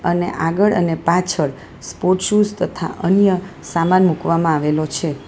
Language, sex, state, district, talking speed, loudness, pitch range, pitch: Gujarati, female, Gujarat, Valsad, 135 wpm, -17 LUFS, 165-185 Hz, 175 Hz